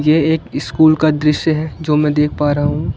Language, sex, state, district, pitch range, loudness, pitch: Hindi, female, Maharashtra, Chandrapur, 150-155 Hz, -15 LUFS, 150 Hz